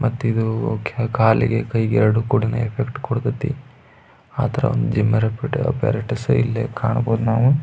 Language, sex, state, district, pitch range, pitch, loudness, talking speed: Kannada, male, Karnataka, Belgaum, 110-130 Hz, 115 Hz, -20 LUFS, 65 wpm